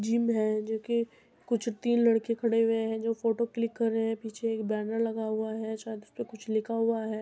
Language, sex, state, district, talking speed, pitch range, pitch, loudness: Hindi, female, Uttar Pradesh, Muzaffarnagar, 225 wpm, 220-230 Hz, 225 Hz, -30 LUFS